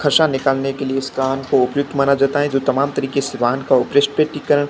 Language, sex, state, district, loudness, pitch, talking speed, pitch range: Hindi, male, Rajasthan, Barmer, -18 LUFS, 140 Hz, 230 wpm, 135-145 Hz